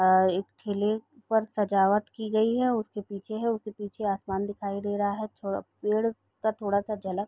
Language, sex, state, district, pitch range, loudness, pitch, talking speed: Hindi, female, Bihar, Gopalganj, 200-220 Hz, -29 LUFS, 205 Hz, 200 wpm